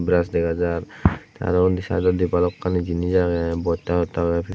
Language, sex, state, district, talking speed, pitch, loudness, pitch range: Chakma, male, Tripura, Unakoti, 160 wpm, 90 Hz, -22 LUFS, 85-90 Hz